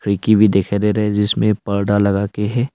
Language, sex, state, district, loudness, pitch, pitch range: Hindi, male, Arunachal Pradesh, Longding, -16 LUFS, 105 Hz, 100-105 Hz